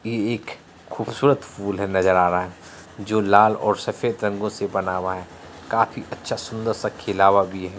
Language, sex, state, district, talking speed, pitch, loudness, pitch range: Hindi, male, Bihar, Araria, 200 wpm, 100 Hz, -22 LUFS, 90-110 Hz